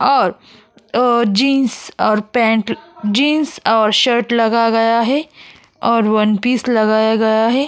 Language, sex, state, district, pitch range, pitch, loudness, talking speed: Hindi, female, Maharashtra, Aurangabad, 220-260 Hz, 230 Hz, -15 LUFS, 135 wpm